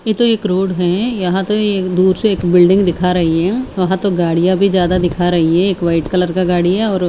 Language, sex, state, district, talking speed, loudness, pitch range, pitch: Hindi, female, Haryana, Charkhi Dadri, 255 wpm, -14 LUFS, 175-195 Hz, 185 Hz